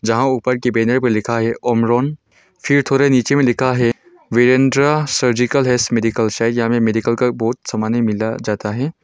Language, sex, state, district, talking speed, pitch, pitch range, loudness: Hindi, male, Arunachal Pradesh, Longding, 185 wpm, 120 Hz, 115-130 Hz, -16 LUFS